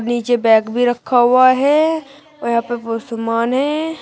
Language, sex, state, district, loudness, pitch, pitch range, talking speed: Hindi, female, Uttar Pradesh, Shamli, -16 LUFS, 245 Hz, 230-285 Hz, 180 wpm